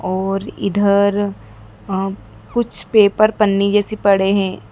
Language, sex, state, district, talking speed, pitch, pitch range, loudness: Hindi, female, Madhya Pradesh, Dhar, 115 wpm, 200 Hz, 195-205 Hz, -17 LUFS